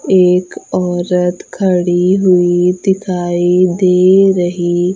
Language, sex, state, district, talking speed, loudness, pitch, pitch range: Hindi, female, Madhya Pradesh, Umaria, 95 wpm, -12 LUFS, 180 Hz, 175-185 Hz